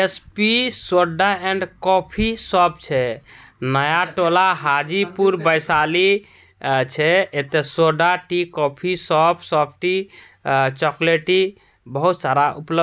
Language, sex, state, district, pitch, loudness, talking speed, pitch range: Angika, male, Bihar, Purnia, 175 Hz, -18 LUFS, 110 wpm, 150-190 Hz